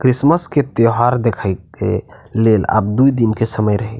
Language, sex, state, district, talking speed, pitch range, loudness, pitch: Maithili, male, Bihar, Madhepura, 195 wpm, 110-125 Hz, -16 LUFS, 115 Hz